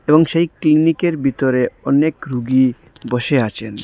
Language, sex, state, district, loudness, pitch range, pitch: Bengali, male, Assam, Hailakandi, -16 LUFS, 130-160 Hz, 140 Hz